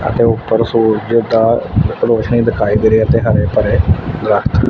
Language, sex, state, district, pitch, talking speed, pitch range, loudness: Punjabi, male, Punjab, Fazilka, 110 Hz, 155 wpm, 105-115 Hz, -13 LUFS